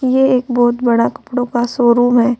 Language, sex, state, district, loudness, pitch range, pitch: Hindi, female, Uttar Pradesh, Saharanpur, -14 LUFS, 240-255 Hz, 245 Hz